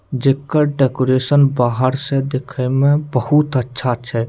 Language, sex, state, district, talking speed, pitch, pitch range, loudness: Maithili, male, Bihar, Samastipur, 125 wpm, 135 Hz, 130-140 Hz, -16 LUFS